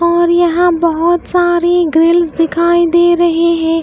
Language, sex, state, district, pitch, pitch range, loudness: Hindi, female, Bihar, Katihar, 340 Hz, 335-345 Hz, -11 LUFS